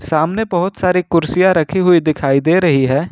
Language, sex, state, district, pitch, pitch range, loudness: Hindi, male, Jharkhand, Ranchi, 175 Hz, 155-185 Hz, -14 LUFS